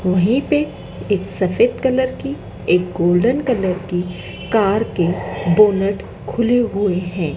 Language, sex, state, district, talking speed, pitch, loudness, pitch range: Hindi, female, Madhya Pradesh, Dhar, 130 wpm, 200 Hz, -18 LUFS, 180-245 Hz